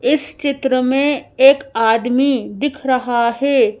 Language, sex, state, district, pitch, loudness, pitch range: Hindi, female, Madhya Pradesh, Bhopal, 265 Hz, -16 LUFS, 245-280 Hz